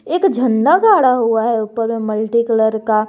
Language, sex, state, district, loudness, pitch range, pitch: Hindi, female, Jharkhand, Garhwa, -15 LUFS, 220-255 Hz, 230 Hz